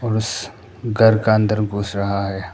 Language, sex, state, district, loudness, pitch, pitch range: Hindi, male, Arunachal Pradesh, Papum Pare, -19 LUFS, 105 Hz, 100-110 Hz